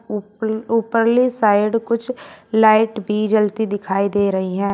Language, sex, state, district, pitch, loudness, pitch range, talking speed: Hindi, male, Uttar Pradesh, Shamli, 215 Hz, -18 LUFS, 205-225 Hz, 140 wpm